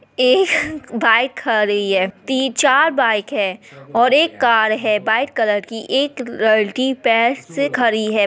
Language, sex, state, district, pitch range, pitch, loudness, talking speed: Hindi, female, Uttar Pradesh, Etah, 215-270 Hz, 230 Hz, -16 LUFS, 150 wpm